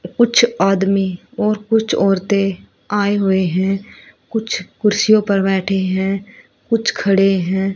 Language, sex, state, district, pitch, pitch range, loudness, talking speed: Hindi, female, Haryana, Rohtak, 195 Hz, 195-215 Hz, -17 LUFS, 125 wpm